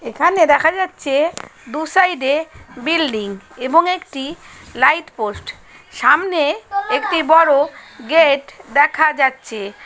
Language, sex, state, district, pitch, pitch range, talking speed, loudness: Bengali, female, West Bengal, Malda, 300 Hz, 270-330 Hz, 110 wpm, -16 LUFS